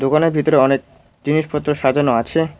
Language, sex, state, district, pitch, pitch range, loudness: Bengali, male, West Bengal, Cooch Behar, 150 Hz, 135-155 Hz, -17 LUFS